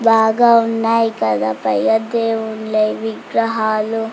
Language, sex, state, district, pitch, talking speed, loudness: Telugu, female, Andhra Pradesh, Chittoor, 220 Hz, 75 wpm, -16 LUFS